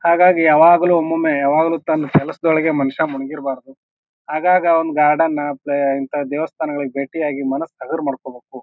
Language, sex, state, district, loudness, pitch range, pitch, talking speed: Kannada, male, Karnataka, Bijapur, -17 LUFS, 140-165 Hz, 150 Hz, 125 wpm